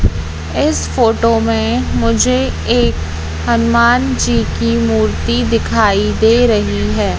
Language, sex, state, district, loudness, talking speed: Hindi, female, Madhya Pradesh, Katni, -14 LUFS, 110 wpm